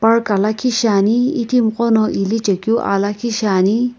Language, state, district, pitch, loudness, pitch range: Sumi, Nagaland, Kohima, 220 Hz, -16 LUFS, 205-235 Hz